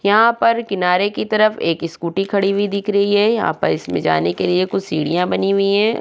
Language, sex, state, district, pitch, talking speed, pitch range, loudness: Hindi, female, Uttarakhand, Tehri Garhwal, 195 Hz, 230 wpm, 180-205 Hz, -17 LUFS